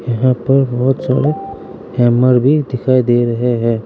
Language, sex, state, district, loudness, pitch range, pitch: Hindi, male, Arunachal Pradesh, Lower Dibang Valley, -14 LUFS, 120-135 Hz, 125 Hz